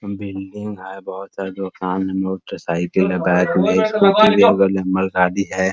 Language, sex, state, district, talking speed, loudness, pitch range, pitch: Hindi, male, Bihar, Muzaffarpur, 180 wpm, -17 LUFS, 95-100 Hz, 95 Hz